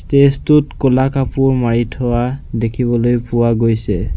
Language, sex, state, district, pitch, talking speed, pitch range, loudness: Assamese, male, Assam, Sonitpur, 120 Hz, 130 wpm, 115-135 Hz, -15 LUFS